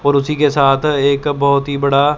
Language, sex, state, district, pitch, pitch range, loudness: Hindi, male, Chandigarh, Chandigarh, 140 Hz, 140-145 Hz, -14 LUFS